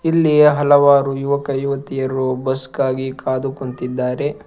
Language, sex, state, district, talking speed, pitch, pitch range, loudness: Kannada, male, Karnataka, Bangalore, 105 wpm, 135 Hz, 130-145 Hz, -17 LUFS